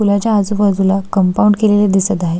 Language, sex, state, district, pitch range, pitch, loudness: Marathi, female, Maharashtra, Solapur, 195-205 Hz, 200 Hz, -13 LUFS